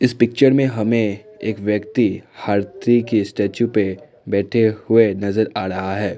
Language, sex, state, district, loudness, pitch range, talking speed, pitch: Hindi, male, Assam, Kamrup Metropolitan, -19 LUFS, 100-115 Hz, 155 wpm, 110 Hz